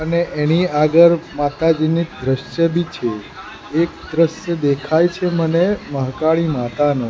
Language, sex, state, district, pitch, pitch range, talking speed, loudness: Gujarati, male, Gujarat, Gandhinagar, 160 Hz, 145-170 Hz, 120 wpm, -17 LUFS